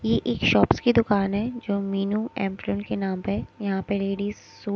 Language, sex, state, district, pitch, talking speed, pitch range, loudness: Hindi, female, Chandigarh, Chandigarh, 200 Hz, 200 wpm, 195-210 Hz, -25 LUFS